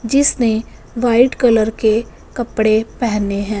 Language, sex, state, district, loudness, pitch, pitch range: Hindi, female, Punjab, Fazilka, -16 LUFS, 230 Hz, 215-240 Hz